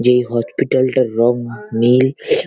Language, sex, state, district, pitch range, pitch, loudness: Bengali, male, West Bengal, North 24 Parganas, 120-130 Hz, 125 Hz, -16 LUFS